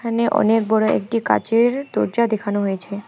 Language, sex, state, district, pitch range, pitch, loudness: Bengali, female, West Bengal, Alipurduar, 205-230 Hz, 225 Hz, -19 LUFS